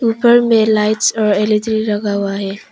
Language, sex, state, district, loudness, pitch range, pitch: Hindi, female, Arunachal Pradesh, Papum Pare, -14 LUFS, 205-225 Hz, 215 Hz